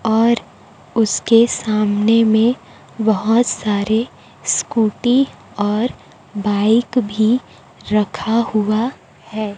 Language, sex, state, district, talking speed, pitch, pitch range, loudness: Hindi, female, Chhattisgarh, Raipur, 80 wpm, 220 Hz, 210-235 Hz, -17 LUFS